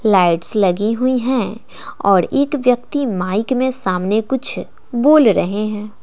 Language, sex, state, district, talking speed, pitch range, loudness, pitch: Hindi, female, Bihar, West Champaran, 140 wpm, 200-255 Hz, -16 LUFS, 220 Hz